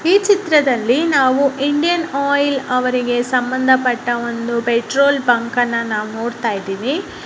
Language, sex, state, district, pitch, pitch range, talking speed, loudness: Kannada, female, Karnataka, Raichur, 255 Hz, 235-280 Hz, 115 wpm, -16 LUFS